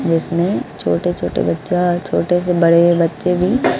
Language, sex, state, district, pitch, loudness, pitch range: Hindi, female, Bihar, West Champaran, 170 Hz, -16 LUFS, 155-180 Hz